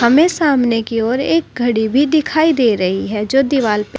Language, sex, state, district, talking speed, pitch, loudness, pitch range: Hindi, female, Uttar Pradesh, Saharanpur, 210 wpm, 255 Hz, -15 LUFS, 225-295 Hz